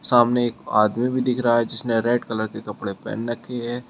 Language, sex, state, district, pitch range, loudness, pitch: Hindi, male, Uttar Pradesh, Shamli, 110-120 Hz, -22 LUFS, 120 Hz